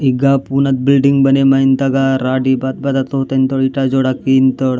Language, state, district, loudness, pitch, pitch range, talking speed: Gondi, Chhattisgarh, Sukma, -14 LUFS, 135 Hz, 130-135 Hz, 185 wpm